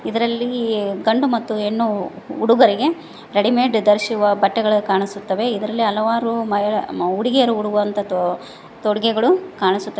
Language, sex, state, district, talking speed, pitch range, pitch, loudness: Kannada, female, Karnataka, Koppal, 100 wpm, 205-230 Hz, 215 Hz, -18 LUFS